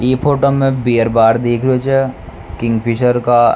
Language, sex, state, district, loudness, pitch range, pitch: Rajasthani, male, Rajasthan, Nagaur, -14 LUFS, 115-130 Hz, 120 Hz